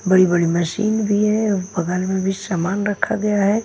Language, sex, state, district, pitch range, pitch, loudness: Hindi, female, Bihar, Patna, 185-210 Hz, 190 Hz, -19 LUFS